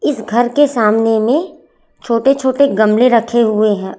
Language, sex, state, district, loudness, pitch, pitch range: Hindi, female, Chhattisgarh, Raipur, -13 LUFS, 235 Hz, 220-270 Hz